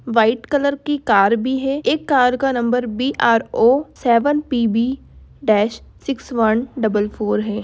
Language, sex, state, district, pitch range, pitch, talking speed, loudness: Hindi, female, Bihar, Darbhanga, 225-270 Hz, 245 Hz, 155 wpm, -18 LUFS